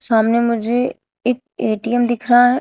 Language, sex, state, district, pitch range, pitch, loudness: Hindi, female, Uttar Pradesh, Shamli, 230-250 Hz, 240 Hz, -17 LUFS